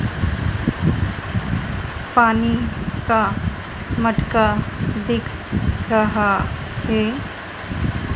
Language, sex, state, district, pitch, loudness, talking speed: Hindi, female, Madhya Pradesh, Dhar, 195 Hz, -21 LUFS, 45 wpm